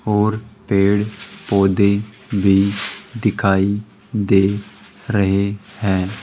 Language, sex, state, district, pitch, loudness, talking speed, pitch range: Hindi, male, Rajasthan, Jaipur, 100 Hz, -18 LUFS, 75 wpm, 100-105 Hz